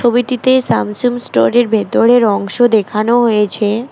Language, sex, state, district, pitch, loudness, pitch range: Bengali, female, West Bengal, Alipurduar, 235 Hz, -13 LUFS, 210-245 Hz